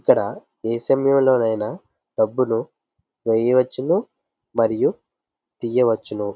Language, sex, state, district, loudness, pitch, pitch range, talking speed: Telugu, male, Andhra Pradesh, Visakhapatnam, -21 LUFS, 115 Hz, 110-130 Hz, 75 wpm